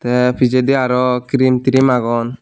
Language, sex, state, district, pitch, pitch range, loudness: Chakma, male, Tripura, Unakoti, 125 Hz, 125-130 Hz, -14 LUFS